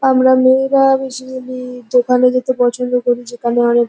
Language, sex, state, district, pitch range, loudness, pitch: Bengali, female, West Bengal, North 24 Parganas, 245-260 Hz, -14 LUFS, 250 Hz